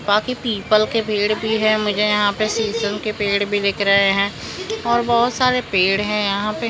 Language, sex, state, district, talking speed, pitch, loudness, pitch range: Hindi, male, Maharashtra, Mumbai Suburban, 205 wpm, 210 Hz, -18 LUFS, 200-225 Hz